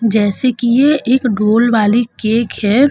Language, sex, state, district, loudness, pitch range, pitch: Hindi, female, Uttar Pradesh, Budaun, -13 LUFS, 215-250 Hz, 235 Hz